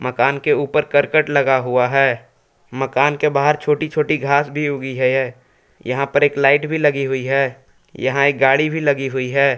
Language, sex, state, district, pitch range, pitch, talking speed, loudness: Hindi, male, Jharkhand, Palamu, 130-145 Hz, 140 Hz, 195 wpm, -17 LUFS